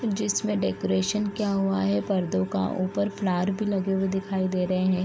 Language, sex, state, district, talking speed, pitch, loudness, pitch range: Hindi, female, Bihar, East Champaran, 190 wpm, 190 Hz, -26 LUFS, 180-200 Hz